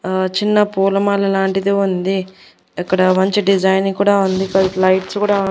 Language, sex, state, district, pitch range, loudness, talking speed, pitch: Telugu, female, Andhra Pradesh, Annamaya, 185-200 Hz, -16 LUFS, 140 wpm, 195 Hz